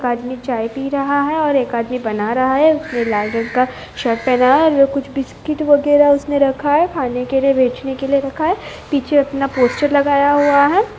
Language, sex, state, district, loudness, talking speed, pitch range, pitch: Hindi, female, Bihar, Bhagalpur, -16 LUFS, 225 wpm, 250-290 Hz, 275 Hz